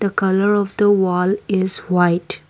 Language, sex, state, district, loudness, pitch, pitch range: English, female, Assam, Kamrup Metropolitan, -17 LUFS, 190 Hz, 180-205 Hz